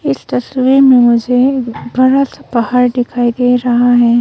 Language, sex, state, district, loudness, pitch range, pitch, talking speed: Hindi, female, Arunachal Pradesh, Longding, -11 LUFS, 240-255 Hz, 245 Hz, 155 wpm